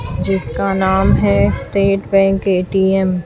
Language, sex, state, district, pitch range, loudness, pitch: Hindi, female, Chhattisgarh, Raipur, 190-195 Hz, -15 LUFS, 195 Hz